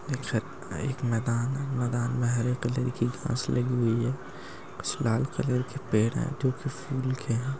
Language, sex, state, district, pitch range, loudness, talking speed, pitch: Hindi, male, Uttar Pradesh, Hamirpur, 120-135 Hz, -29 LUFS, 175 wpm, 125 Hz